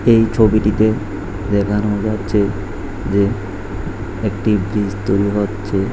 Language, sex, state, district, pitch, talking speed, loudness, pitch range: Bengali, male, Tripura, West Tripura, 105 Hz, 90 wpm, -18 LUFS, 100-105 Hz